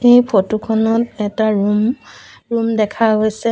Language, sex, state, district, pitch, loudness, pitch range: Assamese, female, Assam, Sonitpur, 220 Hz, -16 LUFS, 215-230 Hz